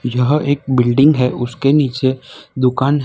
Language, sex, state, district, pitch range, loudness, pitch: Hindi, male, Gujarat, Valsad, 125-145 Hz, -15 LUFS, 130 Hz